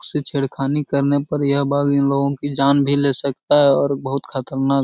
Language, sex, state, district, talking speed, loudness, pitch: Hindi, male, Uttar Pradesh, Muzaffarnagar, 225 wpm, -18 LUFS, 140 Hz